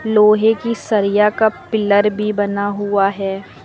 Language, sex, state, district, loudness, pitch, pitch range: Hindi, female, Uttar Pradesh, Lucknow, -16 LUFS, 210 Hz, 200-215 Hz